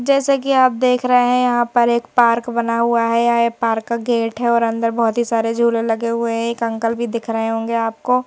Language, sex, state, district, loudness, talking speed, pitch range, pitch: Hindi, female, Madhya Pradesh, Bhopal, -17 LUFS, 245 wpm, 230-240 Hz, 235 Hz